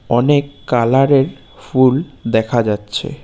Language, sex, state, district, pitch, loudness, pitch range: Bengali, male, West Bengal, Cooch Behar, 130 Hz, -15 LUFS, 115-140 Hz